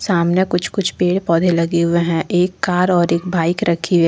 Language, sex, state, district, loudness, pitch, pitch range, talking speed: Hindi, female, Jharkhand, Ranchi, -17 LUFS, 175 Hz, 170-180 Hz, 220 wpm